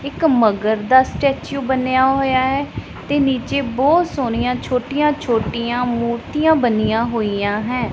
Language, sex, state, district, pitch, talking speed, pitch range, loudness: Punjabi, female, Punjab, Pathankot, 255 Hz, 130 wpm, 235-275 Hz, -18 LUFS